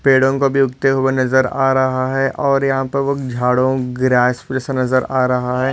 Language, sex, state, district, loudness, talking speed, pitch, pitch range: Hindi, male, Maharashtra, Solapur, -16 LUFS, 210 wpm, 130 Hz, 130-135 Hz